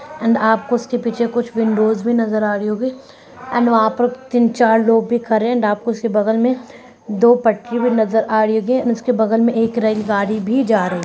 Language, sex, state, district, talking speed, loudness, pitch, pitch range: Hindi, female, Bihar, Sitamarhi, 225 wpm, -16 LUFS, 230 Hz, 220-240 Hz